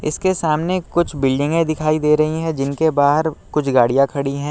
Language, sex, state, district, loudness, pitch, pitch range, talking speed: Hindi, male, Uttar Pradesh, Lucknow, -18 LUFS, 150 Hz, 140-160 Hz, 185 wpm